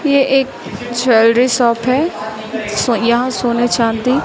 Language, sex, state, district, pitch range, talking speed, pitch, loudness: Hindi, female, Chhattisgarh, Raipur, 230-255 Hz, 125 wpm, 240 Hz, -14 LUFS